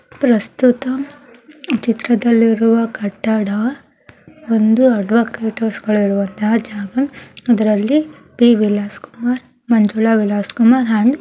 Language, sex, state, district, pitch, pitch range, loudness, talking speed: Kannada, male, Karnataka, Gulbarga, 230 Hz, 215-250 Hz, -16 LUFS, 85 wpm